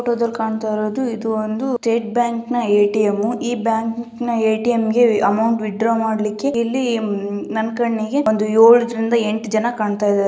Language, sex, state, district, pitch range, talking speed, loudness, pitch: Kannada, female, Karnataka, Gulbarga, 215-235 Hz, 150 wpm, -18 LUFS, 225 Hz